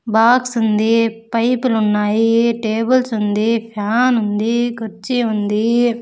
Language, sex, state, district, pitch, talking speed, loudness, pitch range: Telugu, female, Andhra Pradesh, Sri Satya Sai, 225 Hz, 110 wpm, -16 LUFS, 215-240 Hz